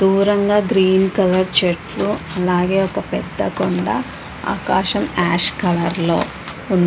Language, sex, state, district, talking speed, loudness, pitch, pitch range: Telugu, female, Andhra Pradesh, Visakhapatnam, 120 wpm, -18 LUFS, 190 Hz, 180-195 Hz